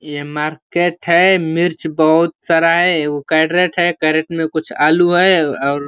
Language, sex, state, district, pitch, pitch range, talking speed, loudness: Hindi, male, Uttar Pradesh, Ghazipur, 160 Hz, 155-175 Hz, 175 wpm, -14 LUFS